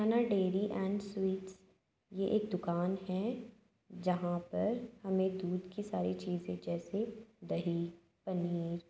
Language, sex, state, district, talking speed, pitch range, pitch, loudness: Hindi, female, Uttar Pradesh, Jyotiba Phule Nagar, 120 wpm, 175-210 Hz, 190 Hz, -37 LUFS